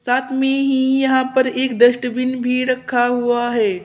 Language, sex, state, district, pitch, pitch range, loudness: Hindi, female, Uttar Pradesh, Saharanpur, 255 Hz, 245-260 Hz, -17 LUFS